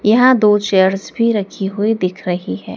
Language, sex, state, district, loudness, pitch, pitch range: Hindi, female, Madhya Pradesh, Dhar, -15 LUFS, 200 Hz, 190-220 Hz